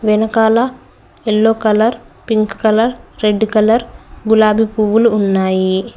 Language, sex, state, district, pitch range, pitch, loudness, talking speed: Telugu, female, Telangana, Mahabubabad, 215-225 Hz, 220 Hz, -14 LUFS, 100 wpm